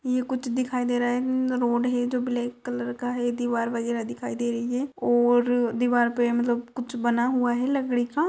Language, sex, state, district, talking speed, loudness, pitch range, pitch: Hindi, female, Maharashtra, Dhule, 210 wpm, -25 LUFS, 240-250 Hz, 245 Hz